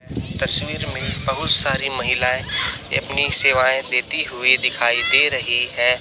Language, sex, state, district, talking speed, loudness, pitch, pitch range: Hindi, male, Chhattisgarh, Raipur, 130 wpm, -16 LUFS, 130 Hz, 125-135 Hz